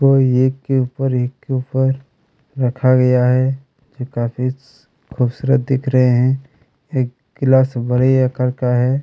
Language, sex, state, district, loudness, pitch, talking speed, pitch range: Hindi, male, Chhattisgarh, Kabirdham, -17 LUFS, 130 Hz, 155 wpm, 125-135 Hz